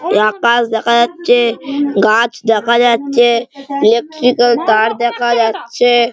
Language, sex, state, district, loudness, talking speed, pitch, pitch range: Bengali, male, West Bengal, Malda, -13 LUFS, 100 wpm, 235 Hz, 230-245 Hz